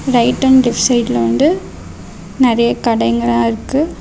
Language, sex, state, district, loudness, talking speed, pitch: Tamil, female, Tamil Nadu, Namakkal, -14 LUFS, 120 wpm, 235 Hz